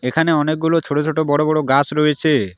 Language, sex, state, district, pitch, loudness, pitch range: Bengali, male, West Bengal, Alipurduar, 150 Hz, -17 LUFS, 145-155 Hz